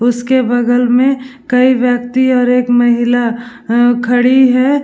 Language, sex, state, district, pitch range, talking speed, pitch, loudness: Hindi, female, Bihar, Vaishali, 240-255 Hz, 135 wpm, 245 Hz, -12 LUFS